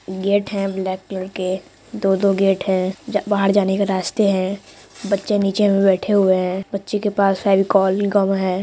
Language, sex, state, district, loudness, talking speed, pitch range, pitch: Hindi, female, Bihar, Purnia, -19 LUFS, 175 wpm, 190-200 Hz, 195 Hz